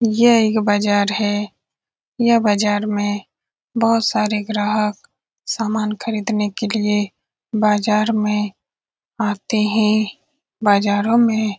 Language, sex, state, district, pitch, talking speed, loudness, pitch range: Hindi, female, Bihar, Saran, 210 Hz, 110 wpm, -18 LUFS, 205-220 Hz